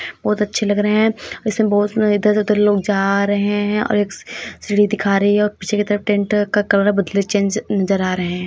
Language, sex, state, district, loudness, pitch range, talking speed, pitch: Hindi, female, Uttar Pradesh, Muzaffarnagar, -17 LUFS, 200-210 Hz, 225 wpm, 205 Hz